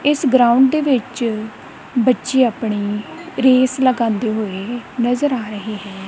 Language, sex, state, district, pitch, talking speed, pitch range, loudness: Punjabi, female, Punjab, Kapurthala, 240 Hz, 120 wpm, 215-255 Hz, -17 LUFS